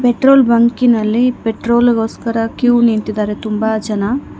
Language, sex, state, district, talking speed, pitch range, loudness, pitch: Kannada, female, Karnataka, Bangalore, 80 wpm, 220-245 Hz, -14 LUFS, 230 Hz